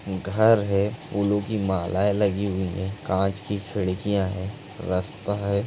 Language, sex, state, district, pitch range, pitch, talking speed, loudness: Hindi, male, Chhattisgarh, Bastar, 95-100 Hz, 100 Hz, 150 wpm, -25 LUFS